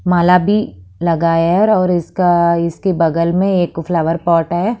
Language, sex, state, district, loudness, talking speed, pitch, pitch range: Hindi, female, Haryana, Charkhi Dadri, -14 LUFS, 150 wpm, 175 Hz, 165-180 Hz